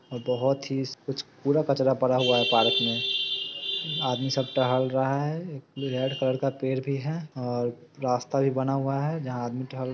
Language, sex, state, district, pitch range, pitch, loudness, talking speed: Hindi, male, Bihar, Sitamarhi, 130-140 Hz, 135 Hz, -27 LUFS, 195 wpm